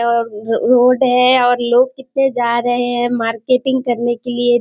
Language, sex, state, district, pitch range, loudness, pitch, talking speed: Hindi, female, Bihar, Kishanganj, 240-250 Hz, -15 LUFS, 245 Hz, 170 wpm